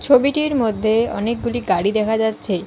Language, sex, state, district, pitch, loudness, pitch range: Bengali, female, West Bengal, Alipurduar, 225 Hz, -19 LUFS, 215-240 Hz